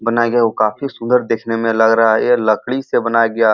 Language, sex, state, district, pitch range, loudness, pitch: Hindi, male, Uttar Pradesh, Muzaffarnagar, 110-120 Hz, -15 LUFS, 115 Hz